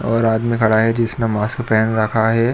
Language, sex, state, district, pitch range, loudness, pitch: Hindi, male, Jharkhand, Sahebganj, 110-115 Hz, -17 LUFS, 115 Hz